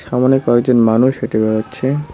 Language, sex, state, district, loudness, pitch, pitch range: Bengali, male, West Bengal, Cooch Behar, -14 LUFS, 125 Hz, 115-135 Hz